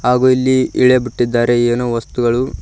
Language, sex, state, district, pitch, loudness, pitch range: Kannada, male, Karnataka, Koppal, 125 Hz, -14 LUFS, 120-130 Hz